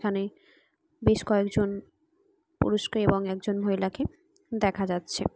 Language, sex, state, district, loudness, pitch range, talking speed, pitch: Bengali, female, West Bengal, Purulia, -28 LUFS, 195-320 Hz, 110 wpm, 210 Hz